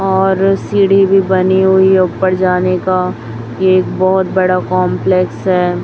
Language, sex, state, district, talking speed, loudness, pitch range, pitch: Hindi, female, Chhattisgarh, Raipur, 135 wpm, -12 LUFS, 185-190 Hz, 185 Hz